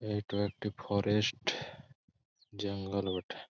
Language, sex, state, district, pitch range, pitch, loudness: Bengali, male, West Bengal, Malda, 100-105 Hz, 100 Hz, -35 LUFS